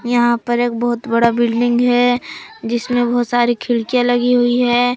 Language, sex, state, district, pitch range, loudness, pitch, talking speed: Hindi, female, Jharkhand, Palamu, 240-245 Hz, -16 LUFS, 240 Hz, 170 wpm